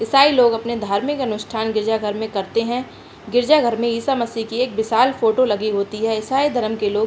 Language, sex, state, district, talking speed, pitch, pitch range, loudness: Hindi, female, Uttar Pradesh, Budaun, 230 wpm, 225 Hz, 215-250 Hz, -19 LUFS